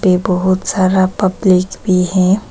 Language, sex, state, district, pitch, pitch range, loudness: Hindi, female, Arunachal Pradesh, Papum Pare, 185 Hz, 185-190 Hz, -14 LUFS